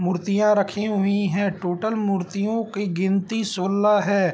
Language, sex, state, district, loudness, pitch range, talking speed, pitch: Hindi, male, Bihar, Gopalganj, -22 LUFS, 190-210 Hz, 165 wpm, 200 Hz